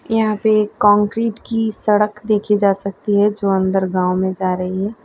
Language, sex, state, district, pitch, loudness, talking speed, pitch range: Hindi, female, Gujarat, Valsad, 205 Hz, -17 LUFS, 190 wpm, 195-215 Hz